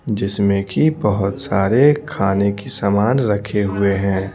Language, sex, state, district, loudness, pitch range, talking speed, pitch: Hindi, male, Bihar, Patna, -17 LUFS, 100-120 Hz, 140 wpm, 100 Hz